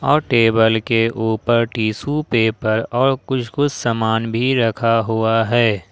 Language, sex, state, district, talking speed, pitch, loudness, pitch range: Hindi, male, Jharkhand, Ranchi, 140 wpm, 115 Hz, -17 LUFS, 110-125 Hz